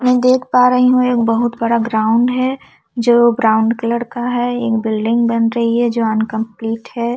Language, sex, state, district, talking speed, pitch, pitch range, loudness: Hindi, female, Chhattisgarh, Jashpur, 190 wpm, 235 Hz, 225-245 Hz, -15 LUFS